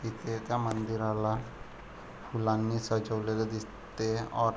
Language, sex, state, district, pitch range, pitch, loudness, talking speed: Marathi, male, Maharashtra, Pune, 110-115 Hz, 110 Hz, -33 LUFS, 105 wpm